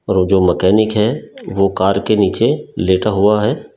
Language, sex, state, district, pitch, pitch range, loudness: Hindi, male, Delhi, New Delhi, 100 Hz, 95-105 Hz, -15 LUFS